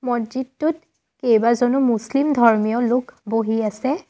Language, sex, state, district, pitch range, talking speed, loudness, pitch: Assamese, female, Assam, Sonitpur, 225-265 Hz, 100 wpm, -20 LUFS, 245 Hz